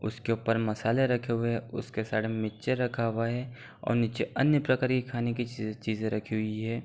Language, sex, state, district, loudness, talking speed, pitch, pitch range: Hindi, male, Uttar Pradesh, Gorakhpur, -30 LUFS, 220 wpm, 115 Hz, 110-120 Hz